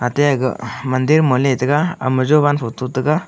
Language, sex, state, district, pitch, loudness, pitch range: Wancho, male, Arunachal Pradesh, Longding, 135 Hz, -17 LUFS, 130-145 Hz